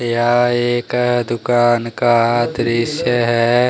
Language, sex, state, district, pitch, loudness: Hindi, male, Jharkhand, Deoghar, 120 Hz, -16 LUFS